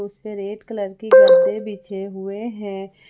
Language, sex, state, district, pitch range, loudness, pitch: Hindi, female, Jharkhand, Palamu, 195-220 Hz, -16 LUFS, 205 Hz